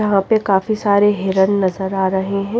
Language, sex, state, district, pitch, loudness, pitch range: Hindi, female, Himachal Pradesh, Shimla, 195 Hz, -16 LUFS, 190-205 Hz